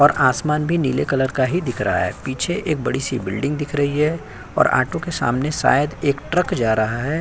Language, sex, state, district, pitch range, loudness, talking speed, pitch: Hindi, male, Uttar Pradesh, Jyotiba Phule Nagar, 130-150 Hz, -20 LUFS, 225 wpm, 140 Hz